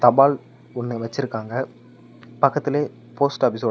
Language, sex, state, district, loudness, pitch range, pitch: Tamil, male, Tamil Nadu, Namakkal, -22 LUFS, 120-140 Hz, 120 Hz